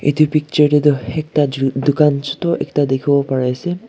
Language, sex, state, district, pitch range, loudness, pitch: Nagamese, male, Nagaland, Kohima, 135-155 Hz, -16 LUFS, 145 Hz